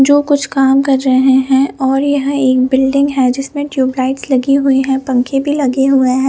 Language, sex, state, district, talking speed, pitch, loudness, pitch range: Hindi, female, Punjab, Fazilka, 200 wpm, 270 Hz, -13 LUFS, 260-275 Hz